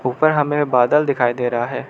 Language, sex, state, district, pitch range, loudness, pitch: Hindi, male, Arunachal Pradesh, Lower Dibang Valley, 125-150 Hz, -17 LUFS, 125 Hz